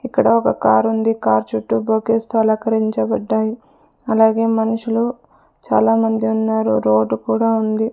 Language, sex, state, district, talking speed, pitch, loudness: Telugu, female, Andhra Pradesh, Sri Satya Sai, 115 wpm, 220 Hz, -17 LUFS